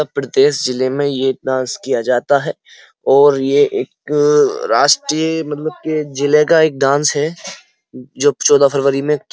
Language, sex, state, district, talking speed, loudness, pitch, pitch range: Hindi, male, Uttar Pradesh, Muzaffarnagar, 155 wpm, -15 LUFS, 145 Hz, 135-160 Hz